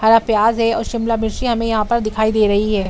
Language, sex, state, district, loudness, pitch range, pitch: Hindi, female, Bihar, Saran, -17 LUFS, 215-230 Hz, 225 Hz